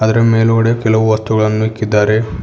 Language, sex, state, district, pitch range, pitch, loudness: Kannada, male, Karnataka, Bidar, 110-115 Hz, 110 Hz, -13 LUFS